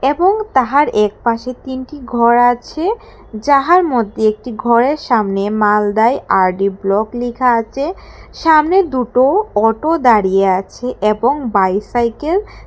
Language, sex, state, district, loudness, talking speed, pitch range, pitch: Bengali, female, Tripura, West Tripura, -14 LUFS, 115 wpm, 215-285 Hz, 245 Hz